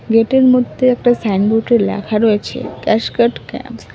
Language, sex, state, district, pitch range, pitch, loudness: Bengali, female, West Bengal, Cooch Behar, 215-245 Hz, 225 Hz, -14 LUFS